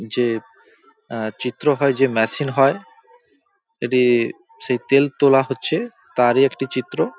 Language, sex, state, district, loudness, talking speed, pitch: Bengali, male, West Bengal, Paschim Medinipur, -19 LUFS, 135 wpm, 135 Hz